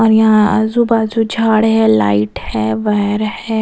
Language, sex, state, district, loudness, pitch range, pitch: Hindi, female, Bihar, West Champaran, -13 LUFS, 205-225 Hz, 220 Hz